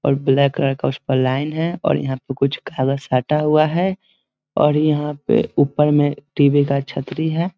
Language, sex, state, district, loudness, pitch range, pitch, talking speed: Hindi, male, Bihar, Muzaffarpur, -19 LUFS, 135-155 Hz, 145 Hz, 205 wpm